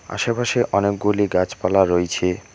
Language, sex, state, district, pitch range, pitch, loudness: Bengali, male, West Bengal, Alipurduar, 90-105 Hz, 100 Hz, -20 LUFS